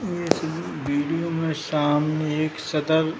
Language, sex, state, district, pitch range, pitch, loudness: Hindi, male, Bihar, Jahanabad, 150-165 Hz, 155 Hz, -24 LUFS